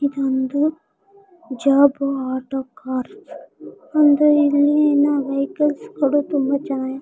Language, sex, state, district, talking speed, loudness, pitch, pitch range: Kannada, female, Karnataka, Shimoga, 75 wpm, -19 LUFS, 285 Hz, 270-295 Hz